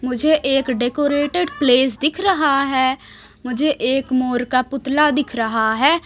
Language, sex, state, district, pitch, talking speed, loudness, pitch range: Hindi, female, Bihar, West Champaran, 270 Hz, 150 wpm, -18 LUFS, 255-290 Hz